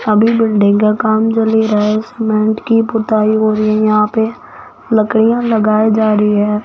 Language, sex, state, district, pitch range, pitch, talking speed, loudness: Hindi, female, Rajasthan, Jaipur, 215-225 Hz, 215 Hz, 190 wpm, -13 LUFS